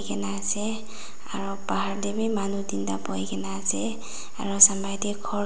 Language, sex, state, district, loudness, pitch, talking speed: Nagamese, female, Nagaland, Dimapur, -25 LUFS, 195 Hz, 165 wpm